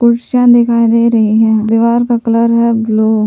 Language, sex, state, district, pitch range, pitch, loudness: Hindi, female, Jharkhand, Palamu, 225-235 Hz, 230 Hz, -10 LUFS